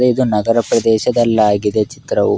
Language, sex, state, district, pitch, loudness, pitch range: Kannada, male, Karnataka, Raichur, 115 Hz, -15 LUFS, 105-120 Hz